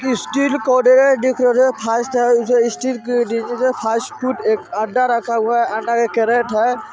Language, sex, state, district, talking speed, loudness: Hindi, male, Bihar, Vaishali, 110 wpm, -17 LUFS